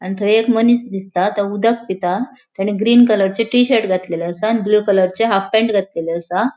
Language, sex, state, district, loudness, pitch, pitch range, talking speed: Konkani, female, Goa, North and South Goa, -16 LUFS, 210 Hz, 190-230 Hz, 200 wpm